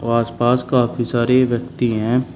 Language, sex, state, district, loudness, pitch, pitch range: Hindi, male, Uttar Pradesh, Shamli, -18 LUFS, 120 Hz, 120-125 Hz